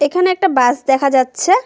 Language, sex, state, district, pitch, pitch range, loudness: Bengali, female, West Bengal, Cooch Behar, 280 Hz, 260-370 Hz, -14 LUFS